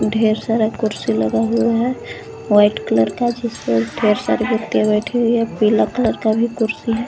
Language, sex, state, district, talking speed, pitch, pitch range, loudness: Hindi, female, Jharkhand, Garhwa, 185 wpm, 220 Hz, 210-235 Hz, -17 LUFS